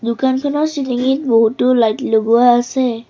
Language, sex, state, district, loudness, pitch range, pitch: Assamese, female, Assam, Sonitpur, -15 LUFS, 230-265 Hz, 245 Hz